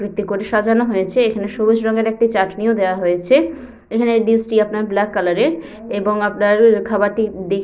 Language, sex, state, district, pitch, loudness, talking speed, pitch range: Bengali, female, West Bengal, Jhargram, 215 Hz, -17 LUFS, 190 wpm, 205-225 Hz